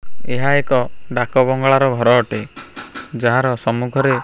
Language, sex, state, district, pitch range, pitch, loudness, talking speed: Odia, male, Odisha, Khordha, 120-135 Hz, 130 Hz, -17 LUFS, 125 wpm